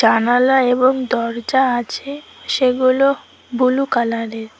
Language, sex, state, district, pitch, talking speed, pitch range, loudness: Bengali, female, West Bengal, Cooch Behar, 250 Hz, 90 wpm, 235-265 Hz, -17 LUFS